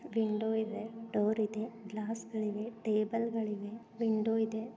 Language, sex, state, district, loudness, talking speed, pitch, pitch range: Kannada, female, Karnataka, Dharwad, -35 LUFS, 115 wpm, 220 Hz, 215-225 Hz